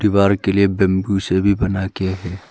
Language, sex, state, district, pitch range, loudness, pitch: Hindi, male, Arunachal Pradesh, Papum Pare, 95-100 Hz, -18 LUFS, 95 Hz